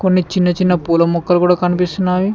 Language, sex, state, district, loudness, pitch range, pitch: Telugu, male, Telangana, Mahabubabad, -15 LUFS, 175-185 Hz, 180 Hz